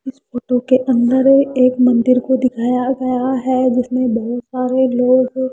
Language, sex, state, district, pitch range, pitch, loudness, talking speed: Hindi, female, Rajasthan, Jaipur, 250-260 Hz, 255 Hz, -15 LUFS, 150 wpm